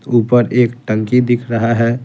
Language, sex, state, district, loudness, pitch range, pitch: Hindi, male, Bihar, Patna, -14 LUFS, 115-125 Hz, 120 Hz